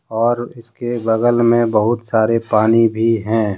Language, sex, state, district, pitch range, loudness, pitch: Hindi, male, Jharkhand, Deoghar, 110-120 Hz, -16 LUFS, 115 Hz